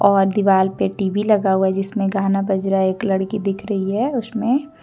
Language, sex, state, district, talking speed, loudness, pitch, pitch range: Hindi, female, Jharkhand, Deoghar, 210 wpm, -19 LUFS, 195 Hz, 195-210 Hz